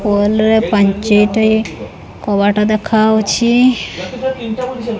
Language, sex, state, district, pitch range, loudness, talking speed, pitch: Odia, female, Odisha, Khordha, 205-235 Hz, -14 LUFS, 60 wpm, 215 Hz